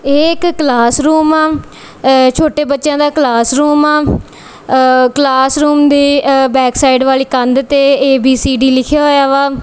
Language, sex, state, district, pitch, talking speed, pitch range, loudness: Punjabi, female, Punjab, Kapurthala, 275 Hz, 145 wpm, 265-295 Hz, -10 LUFS